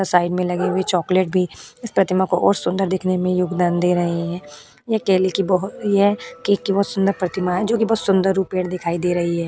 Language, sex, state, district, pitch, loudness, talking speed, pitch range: Hindi, female, Uttar Pradesh, Budaun, 185 Hz, -19 LUFS, 220 wpm, 180-195 Hz